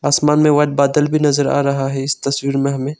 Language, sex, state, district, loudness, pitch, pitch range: Hindi, male, Arunachal Pradesh, Lower Dibang Valley, -16 LUFS, 140 Hz, 140-150 Hz